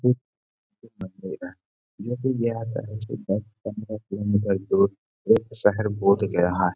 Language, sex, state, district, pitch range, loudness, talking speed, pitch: Hindi, male, Bihar, Gaya, 100-120 Hz, -25 LUFS, 35 wpm, 105 Hz